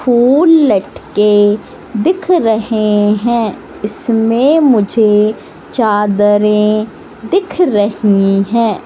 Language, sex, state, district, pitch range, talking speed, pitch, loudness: Hindi, female, Madhya Pradesh, Katni, 210-245 Hz, 75 wpm, 215 Hz, -12 LUFS